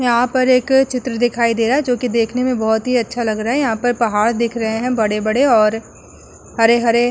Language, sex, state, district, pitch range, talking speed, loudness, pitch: Hindi, female, Uttar Pradesh, Muzaffarnagar, 225-250 Hz, 220 wpm, -16 LUFS, 235 Hz